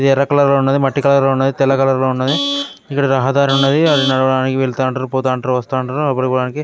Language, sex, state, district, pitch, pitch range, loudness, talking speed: Telugu, male, Telangana, Karimnagar, 135 Hz, 130-140 Hz, -15 LUFS, 200 wpm